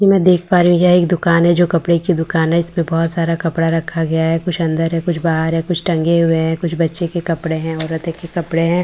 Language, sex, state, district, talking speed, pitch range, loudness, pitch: Hindi, female, Bihar, Katihar, 285 wpm, 165-175 Hz, -16 LUFS, 165 Hz